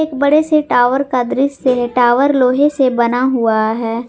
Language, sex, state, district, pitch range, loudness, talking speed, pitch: Hindi, female, Jharkhand, Garhwa, 240-280 Hz, -14 LUFS, 175 wpm, 255 Hz